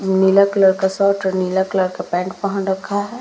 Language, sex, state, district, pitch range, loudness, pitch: Hindi, female, Bihar, Vaishali, 190-200 Hz, -17 LUFS, 190 Hz